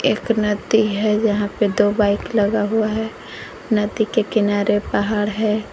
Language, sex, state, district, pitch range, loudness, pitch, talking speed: Hindi, female, Jharkhand, Garhwa, 205-220 Hz, -19 LUFS, 210 Hz, 145 wpm